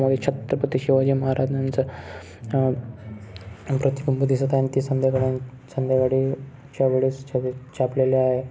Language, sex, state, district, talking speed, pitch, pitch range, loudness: Marathi, male, Maharashtra, Chandrapur, 115 wpm, 130 Hz, 130-135 Hz, -23 LUFS